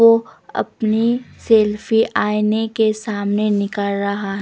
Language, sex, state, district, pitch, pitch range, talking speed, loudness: Hindi, female, Bihar, West Champaran, 215 Hz, 205-225 Hz, 110 wpm, -18 LUFS